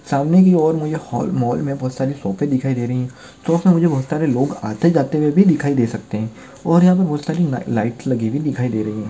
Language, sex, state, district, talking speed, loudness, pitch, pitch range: Hindi, male, Maharashtra, Chandrapur, 270 wpm, -18 LUFS, 140 Hz, 125-160 Hz